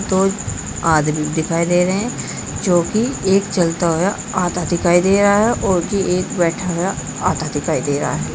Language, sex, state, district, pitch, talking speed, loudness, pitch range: Hindi, female, Uttar Pradesh, Saharanpur, 180 Hz, 185 wpm, -17 LUFS, 165-195 Hz